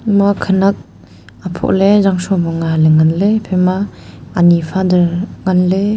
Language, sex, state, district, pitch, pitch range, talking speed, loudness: Wancho, female, Arunachal Pradesh, Longding, 185 Hz, 170-195 Hz, 120 wpm, -13 LUFS